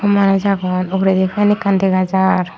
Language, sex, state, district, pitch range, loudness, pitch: Chakma, female, Tripura, Unakoti, 185-200 Hz, -15 LUFS, 190 Hz